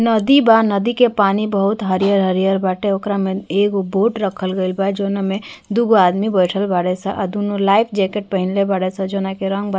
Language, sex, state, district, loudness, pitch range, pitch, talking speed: Bhojpuri, female, Uttar Pradesh, Ghazipur, -17 LUFS, 190-205 Hz, 195 Hz, 215 wpm